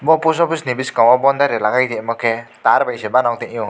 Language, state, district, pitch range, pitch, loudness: Kokborok, Tripura, West Tripura, 115-140 Hz, 125 Hz, -16 LUFS